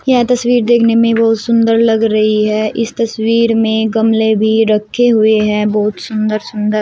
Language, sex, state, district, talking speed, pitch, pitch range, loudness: Hindi, female, Uttar Pradesh, Shamli, 175 wpm, 225 Hz, 215-230 Hz, -12 LUFS